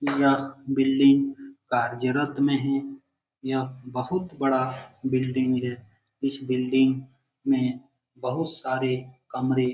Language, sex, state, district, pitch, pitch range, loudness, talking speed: Hindi, male, Bihar, Jamui, 130 Hz, 130-140 Hz, -25 LUFS, 105 wpm